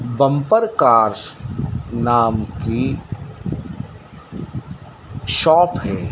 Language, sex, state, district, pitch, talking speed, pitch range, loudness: Hindi, male, Madhya Pradesh, Dhar, 120 Hz, 60 wpm, 115-140 Hz, -18 LUFS